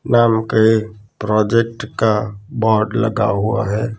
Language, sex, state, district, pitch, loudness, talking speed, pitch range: Hindi, male, Gujarat, Gandhinagar, 110 Hz, -17 LUFS, 120 wpm, 105-115 Hz